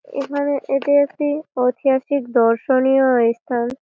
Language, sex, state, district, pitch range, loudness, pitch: Bengali, female, West Bengal, Malda, 250-285 Hz, -18 LUFS, 270 Hz